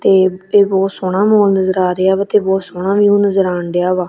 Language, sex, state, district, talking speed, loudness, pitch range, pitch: Punjabi, female, Punjab, Kapurthala, 250 wpm, -14 LUFS, 185-200 Hz, 190 Hz